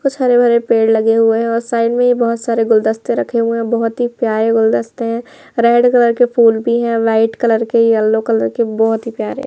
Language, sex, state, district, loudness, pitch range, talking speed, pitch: Hindi, male, Madhya Pradesh, Bhopal, -14 LUFS, 225-235 Hz, 230 wpm, 230 Hz